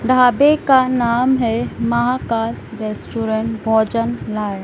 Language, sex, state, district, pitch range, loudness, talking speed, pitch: Hindi, female, Madhya Pradesh, Dhar, 220-250 Hz, -17 LUFS, 105 wpm, 230 Hz